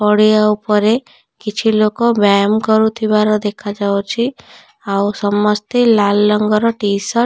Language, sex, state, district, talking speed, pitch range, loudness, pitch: Odia, female, Odisha, Nuapada, 125 wpm, 205-220 Hz, -14 LUFS, 210 Hz